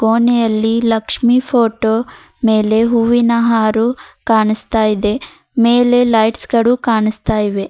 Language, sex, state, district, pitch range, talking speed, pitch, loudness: Kannada, female, Karnataka, Bidar, 220-240 Hz, 95 wpm, 230 Hz, -14 LUFS